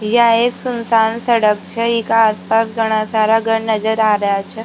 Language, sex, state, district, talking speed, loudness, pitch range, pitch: Rajasthani, female, Rajasthan, Nagaur, 220 wpm, -15 LUFS, 215-230 Hz, 225 Hz